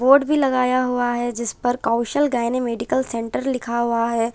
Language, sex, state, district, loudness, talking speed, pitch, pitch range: Hindi, female, Punjab, Kapurthala, -21 LUFS, 180 wpm, 245 Hz, 235-255 Hz